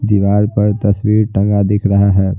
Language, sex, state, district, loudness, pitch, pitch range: Hindi, male, Bihar, Patna, -13 LUFS, 100 Hz, 100-105 Hz